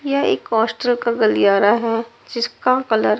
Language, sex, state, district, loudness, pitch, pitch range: Hindi, female, Punjab, Pathankot, -18 LUFS, 235 Hz, 220-245 Hz